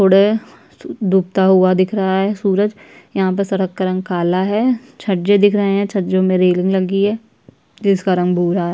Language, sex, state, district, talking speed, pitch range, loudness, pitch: Hindi, female, Chhattisgarh, Sukma, 185 wpm, 185-200 Hz, -16 LUFS, 190 Hz